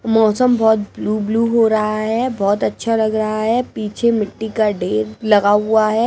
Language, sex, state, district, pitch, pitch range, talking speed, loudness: Hindi, female, Delhi, New Delhi, 220 Hz, 210-225 Hz, 180 wpm, -17 LUFS